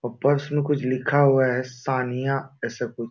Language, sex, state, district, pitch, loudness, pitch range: Hindi, male, Uttar Pradesh, Jalaun, 130 Hz, -23 LUFS, 125-140 Hz